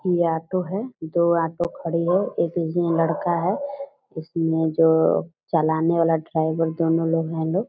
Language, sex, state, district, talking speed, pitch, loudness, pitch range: Hindi, female, Bihar, Purnia, 165 wpm, 165 Hz, -22 LUFS, 160-175 Hz